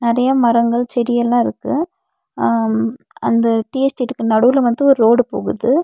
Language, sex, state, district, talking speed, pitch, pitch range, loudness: Tamil, female, Tamil Nadu, Nilgiris, 145 wpm, 240 Hz, 230-265 Hz, -16 LUFS